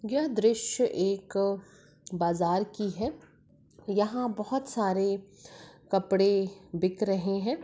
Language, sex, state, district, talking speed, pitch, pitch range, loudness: Hindi, female, Maharashtra, Nagpur, 100 wpm, 195 Hz, 190-225 Hz, -29 LUFS